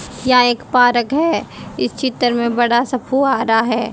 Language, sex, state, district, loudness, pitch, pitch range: Hindi, female, Haryana, Charkhi Dadri, -16 LUFS, 245 Hz, 235-260 Hz